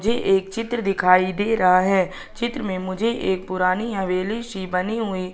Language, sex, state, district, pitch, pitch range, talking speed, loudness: Hindi, female, Madhya Pradesh, Katni, 195 Hz, 185-225 Hz, 180 wpm, -21 LUFS